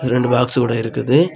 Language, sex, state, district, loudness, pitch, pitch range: Tamil, male, Tamil Nadu, Kanyakumari, -17 LUFS, 125 Hz, 125-130 Hz